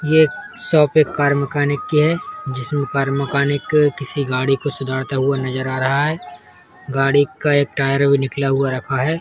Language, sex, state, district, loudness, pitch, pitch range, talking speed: Hindi, male, Uttar Pradesh, Muzaffarnagar, -18 LUFS, 140 Hz, 135-150 Hz, 175 wpm